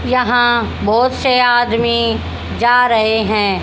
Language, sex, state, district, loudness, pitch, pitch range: Hindi, female, Haryana, Rohtak, -14 LUFS, 240 Hz, 225-245 Hz